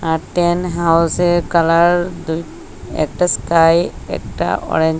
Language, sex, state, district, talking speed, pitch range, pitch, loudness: Bengali, female, Assam, Hailakandi, 120 wpm, 165-175 Hz, 170 Hz, -16 LUFS